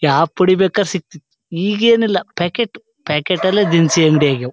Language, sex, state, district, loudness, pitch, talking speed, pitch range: Kannada, male, Karnataka, Shimoga, -15 LUFS, 180 Hz, 170 wpm, 155-200 Hz